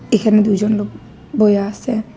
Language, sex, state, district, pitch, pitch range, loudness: Bengali, female, Tripura, West Tripura, 215 Hz, 205-225 Hz, -16 LUFS